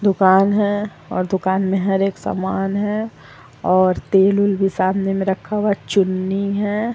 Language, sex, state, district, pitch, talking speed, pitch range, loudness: Hindi, female, Bihar, Vaishali, 195 Hz, 165 wpm, 190-205 Hz, -18 LUFS